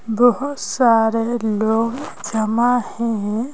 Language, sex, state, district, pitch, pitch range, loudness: Hindi, female, Madhya Pradesh, Bhopal, 230 Hz, 220-245 Hz, -19 LUFS